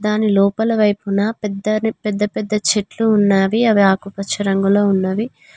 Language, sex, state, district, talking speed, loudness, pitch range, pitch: Telugu, female, Telangana, Mahabubabad, 130 wpm, -17 LUFS, 200-215 Hz, 210 Hz